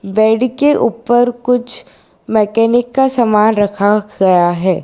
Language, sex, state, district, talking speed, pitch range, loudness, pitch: Hindi, female, Gujarat, Valsad, 125 wpm, 205-245 Hz, -13 LUFS, 225 Hz